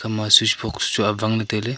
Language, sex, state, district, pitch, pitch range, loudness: Wancho, male, Arunachal Pradesh, Longding, 110 Hz, 105-110 Hz, -18 LUFS